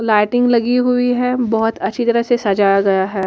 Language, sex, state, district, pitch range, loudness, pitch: Hindi, female, Delhi, New Delhi, 200-245 Hz, -15 LUFS, 235 Hz